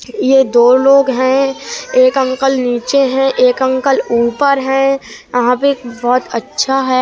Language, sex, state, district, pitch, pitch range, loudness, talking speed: Hindi, female, Uttar Pradesh, Budaun, 265 Hz, 250-275 Hz, -13 LUFS, 145 wpm